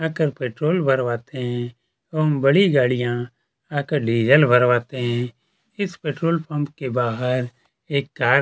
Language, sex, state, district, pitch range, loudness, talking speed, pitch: Hindi, male, Chhattisgarh, Kabirdham, 120-155 Hz, -21 LUFS, 135 wpm, 135 Hz